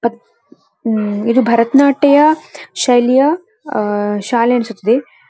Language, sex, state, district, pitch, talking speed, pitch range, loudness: Kannada, female, Karnataka, Dharwad, 240 Hz, 80 wpm, 225-285 Hz, -14 LUFS